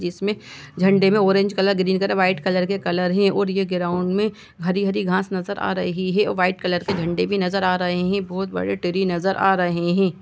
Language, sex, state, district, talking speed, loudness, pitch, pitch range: Hindi, female, Chhattisgarh, Sukma, 225 wpm, -21 LUFS, 190 Hz, 180-195 Hz